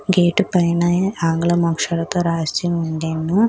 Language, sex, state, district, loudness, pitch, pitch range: Telugu, female, Telangana, Hyderabad, -19 LUFS, 170 Hz, 165-180 Hz